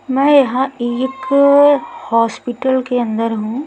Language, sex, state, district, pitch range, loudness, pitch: Hindi, female, Chhattisgarh, Raipur, 240-275 Hz, -15 LUFS, 260 Hz